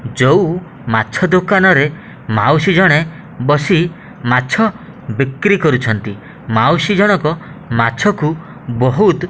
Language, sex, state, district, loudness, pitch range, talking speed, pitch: Odia, male, Odisha, Khordha, -14 LUFS, 125-185 Hz, 85 wpm, 155 Hz